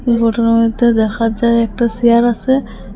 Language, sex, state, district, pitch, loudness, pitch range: Bengali, female, Assam, Hailakandi, 230 Hz, -14 LUFS, 225-235 Hz